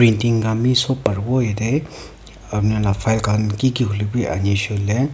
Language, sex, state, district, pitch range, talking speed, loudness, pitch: Nagamese, female, Nagaland, Kohima, 105-125 Hz, 165 wpm, -19 LUFS, 110 Hz